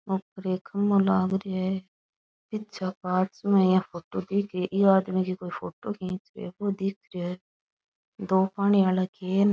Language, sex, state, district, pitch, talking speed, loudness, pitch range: Rajasthani, female, Rajasthan, Churu, 190 Hz, 185 wpm, -27 LUFS, 185-200 Hz